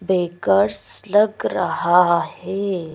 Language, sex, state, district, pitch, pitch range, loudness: Hindi, female, Madhya Pradesh, Bhopal, 190 Hz, 175-200 Hz, -19 LUFS